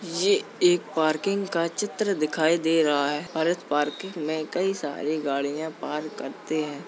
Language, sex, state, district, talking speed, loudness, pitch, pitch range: Hindi, female, Uttar Pradesh, Jalaun, 165 wpm, -26 LUFS, 160 Hz, 150-195 Hz